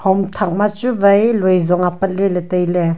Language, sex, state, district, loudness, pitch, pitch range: Wancho, female, Arunachal Pradesh, Longding, -15 LUFS, 190 Hz, 180-205 Hz